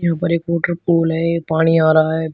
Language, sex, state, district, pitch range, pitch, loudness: Hindi, male, Uttar Pradesh, Shamli, 160-170 Hz, 165 Hz, -16 LUFS